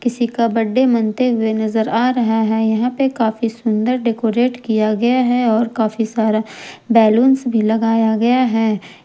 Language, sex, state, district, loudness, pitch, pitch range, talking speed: Hindi, female, Jharkhand, Garhwa, -16 LUFS, 225 Hz, 220-245 Hz, 165 wpm